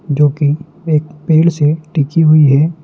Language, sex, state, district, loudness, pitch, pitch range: Hindi, male, Madhya Pradesh, Dhar, -12 LUFS, 155 Hz, 150-160 Hz